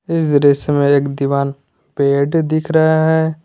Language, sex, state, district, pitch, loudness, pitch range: Hindi, male, Jharkhand, Garhwa, 145 Hz, -15 LUFS, 140-160 Hz